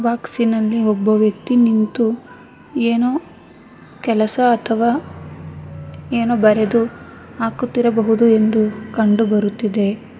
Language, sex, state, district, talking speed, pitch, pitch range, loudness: Kannada, female, Karnataka, Bangalore, 75 wpm, 225 Hz, 215-235 Hz, -17 LUFS